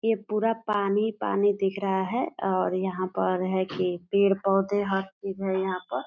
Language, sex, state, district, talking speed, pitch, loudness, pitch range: Hindi, female, Bihar, Purnia, 190 wpm, 195 Hz, -26 LUFS, 190-205 Hz